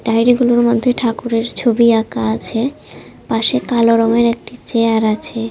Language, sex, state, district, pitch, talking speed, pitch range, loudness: Bengali, female, Tripura, West Tripura, 230 Hz, 140 wpm, 225-240 Hz, -15 LUFS